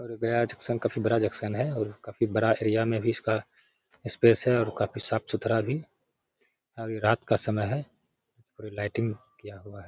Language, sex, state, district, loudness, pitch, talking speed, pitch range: Hindi, male, Bihar, Gaya, -27 LUFS, 110 Hz, 195 wpm, 105-115 Hz